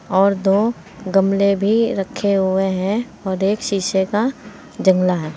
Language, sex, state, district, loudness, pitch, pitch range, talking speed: Hindi, female, Uttar Pradesh, Saharanpur, -18 LUFS, 195 Hz, 190-210 Hz, 145 wpm